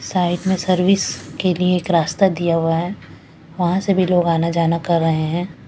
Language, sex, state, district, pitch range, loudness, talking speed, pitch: Hindi, female, Bihar, West Champaran, 165-185 Hz, -18 LUFS, 200 wpm, 175 Hz